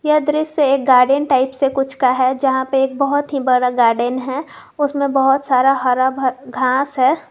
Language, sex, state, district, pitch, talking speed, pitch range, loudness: Hindi, female, Jharkhand, Garhwa, 265 Hz, 195 wpm, 255-280 Hz, -16 LUFS